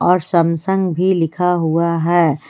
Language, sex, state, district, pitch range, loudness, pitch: Hindi, female, Jharkhand, Ranchi, 165-180 Hz, -16 LUFS, 170 Hz